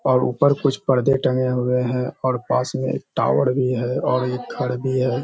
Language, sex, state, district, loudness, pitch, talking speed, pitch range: Hindi, male, Bihar, Kishanganj, -21 LUFS, 130 Hz, 220 wpm, 125-130 Hz